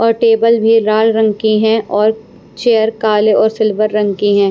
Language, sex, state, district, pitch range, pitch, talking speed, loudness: Hindi, female, Punjab, Pathankot, 215-225 Hz, 220 Hz, 200 wpm, -12 LUFS